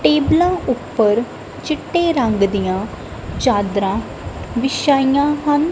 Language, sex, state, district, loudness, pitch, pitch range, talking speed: Punjabi, female, Punjab, Kapurthala, -17 LUFS, 260 Hz, 200-295 Hz, 85 wpm